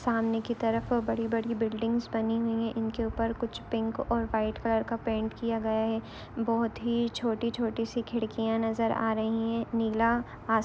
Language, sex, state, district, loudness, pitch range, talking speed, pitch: Hindi, female, Maharashtra, Solapur, -30 LUFS, 225-230 Hz, 180 wpm, 230 Hz